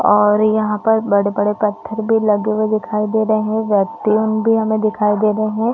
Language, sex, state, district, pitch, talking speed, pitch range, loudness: Hindi, female, Chhattisgarh, Rajnandgaon, 215 Hz, 210 wpm, 210-220 Hz, -16 LUFS